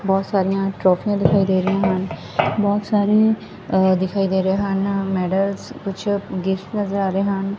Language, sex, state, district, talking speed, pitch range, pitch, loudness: Punjabi, female, Punjab, Fazilka, 165 wpm, 190-200 Hz, 195 Hz, -20 LUFS